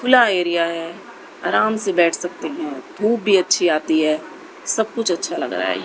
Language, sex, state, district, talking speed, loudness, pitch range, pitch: Hindi, female, Haryana, Rohtak, 185 wpm, -19 LUFS, 170-235 Hz, 195 Hz